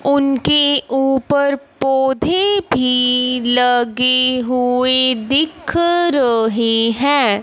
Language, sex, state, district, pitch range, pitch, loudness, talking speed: Hindi, female, Punjab, Fazilka, 250-285 Hz, 260 Hz, -15 LUFS, 75 wpm